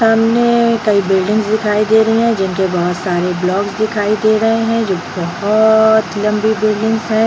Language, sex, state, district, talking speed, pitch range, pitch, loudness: Hindi, female, Bihar, Jamui, 180 wpm, 195-220 Hz, 215 Hz, -14 LUFS